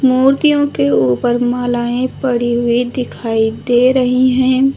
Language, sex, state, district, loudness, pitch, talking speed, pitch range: Hindi, female, Uttar Pradesh, Lucknow, -14 LUFS, 245 Hz, 125 wpm, 240-260 Hz